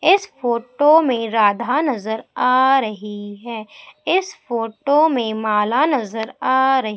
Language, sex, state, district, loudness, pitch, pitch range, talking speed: Hindi, female, Madhya Pradesh, Umaria, -18 LUFS, 245 Hz, 220-280 Hz, 130 wpm